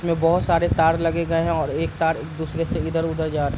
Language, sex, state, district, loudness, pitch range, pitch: Hindi, male, Bihar, East Champaran, -22 LUFS, 160-165 Hz, 165 Hz